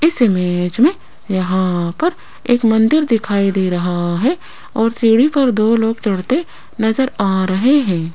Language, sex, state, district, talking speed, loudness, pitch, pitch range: Hindi, female, Rajasthan, Jaipur, 155 wpm, -15 LUFS, 220 Hz, 185-260 Hz